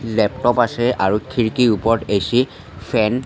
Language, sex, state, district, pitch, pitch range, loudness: Assamese, male, Assam, Sonitpur, 115 Hz, 105-120 Hz, -18 LUFS